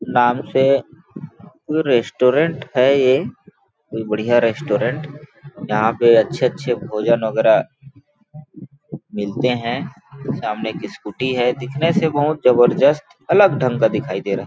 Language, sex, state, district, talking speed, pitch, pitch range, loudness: Hindi, male, Chhattisgarh, Balrampur, 130 wpm, 130 Hz, 120-150 Hz, -18 LUFS